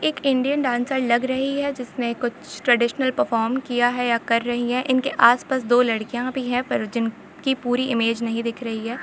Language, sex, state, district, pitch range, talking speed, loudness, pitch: Hindi, female, Jharkhand, Sahebganj, 235-260 Hz, 220 wpm, -22 LUFS, 245 Hz